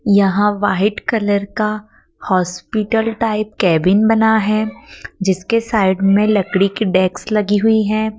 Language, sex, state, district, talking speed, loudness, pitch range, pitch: Hindi, female, Madhya Pradesh, Dhar, 130 wpm, -16 LUFS, 195-220 Hz, 210 Hz